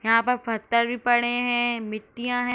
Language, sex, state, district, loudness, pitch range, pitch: Hindi, female, Uttar Pradesh, Hamirpur, -24 LUFS, 230-245 Hz, 240 Hz